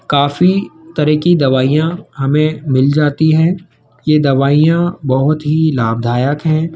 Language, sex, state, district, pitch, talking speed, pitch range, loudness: Hindi, male, Rajasthan, Jaipur, 150 Hz, 125 wpm, 140-160 Hz, -13 LUFS